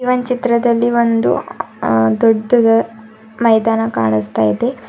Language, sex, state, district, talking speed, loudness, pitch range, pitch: Kannada, female, Karnataka, Bidar, 110 wpm, -14 LUFS, 220-240 Hz, 225 Hz